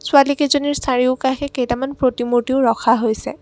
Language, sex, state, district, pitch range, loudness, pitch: Assamese, female, Assam, Kamrup Metropolitan, 240-280 Hz, -18 LUFS, 255 Hz